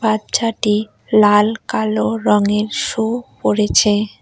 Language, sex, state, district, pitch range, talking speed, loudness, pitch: Bengali, female, West Bengal, Cooch Behar, 205-220 Hz, 85 wpm, -16 LUFS, 210 Hz